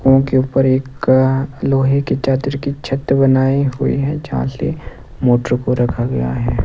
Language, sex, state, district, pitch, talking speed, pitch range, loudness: Hindi, male, Odisha, Nuapada, 135 Hz, 160 wpm, 125-135 Hz, -16 LUFS